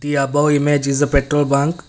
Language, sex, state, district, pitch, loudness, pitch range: English, male, Karnataka, Bangalore, 145 Hz, -16 LUFS, 140-145 Hz